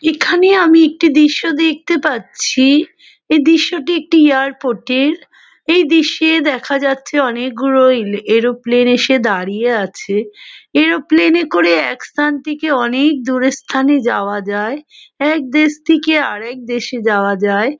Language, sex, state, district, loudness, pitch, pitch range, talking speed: Bengali, female, West Bengal, Malda, -13 LUFS, 275 Hz, 240-315 Hz, 150 wpm